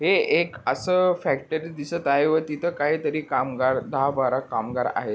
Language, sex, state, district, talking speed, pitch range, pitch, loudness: Marathi, male, Maharashtra, Pune, 165 wpm, 135-170 Hz, 150 Hz, -24 LUFS